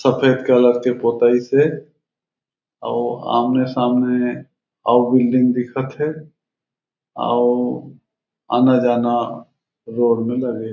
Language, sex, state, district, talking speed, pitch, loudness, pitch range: Chhattisgarhi, male, Chhattisgarh, Raigarh, 95 wpm, 125 Hz, -18 LUFS, 120-130 Hz